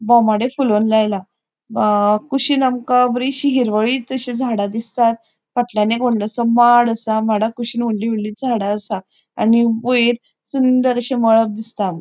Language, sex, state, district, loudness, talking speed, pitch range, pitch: Konkani, female, Goa, North and South Goa, -17 LUFS, 135 wpm, 215-245 Hz, 230 Hz